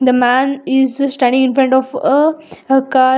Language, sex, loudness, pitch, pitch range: English, female, -14 LUFS, 265 Hz, 260-275 Hz